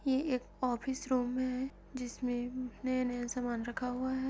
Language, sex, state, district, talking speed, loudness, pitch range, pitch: Hindi, female, Chhattisgarh, Sarguja, 165 wpm, -36 LUFS, 245-260 Hz, 255 Hz